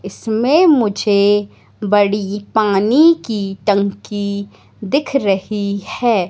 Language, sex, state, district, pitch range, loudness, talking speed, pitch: Hindi, female, Madhya Pradesh, Katni, 200-230 Hz, -16 LUFS, 85 wpm, 205 Hz